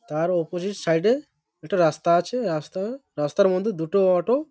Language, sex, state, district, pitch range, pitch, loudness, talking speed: Bengali, male, West Bengal, Malda, 165-205 Hz, 180 Hz, -23 LUFS, 175 wpm